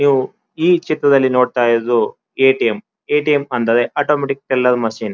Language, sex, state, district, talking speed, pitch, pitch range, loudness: Kannada, male, Karnataka, Dharwad, 130 wpm, 140 Hz, 125-160 Hz, -16 LUFS